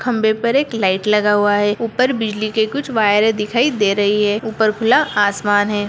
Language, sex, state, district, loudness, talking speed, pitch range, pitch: Hindi, female, Bihar, Jahanabad, -16 LUFS, 205 wpm, 205-225 Hz, 215 Hz